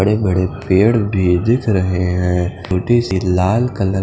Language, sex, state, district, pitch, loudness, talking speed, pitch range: Hindi, male, Himachal Pradesh, Shimla, 95 Hz, -16 LUFS, 180 wpm, 90-110 Hz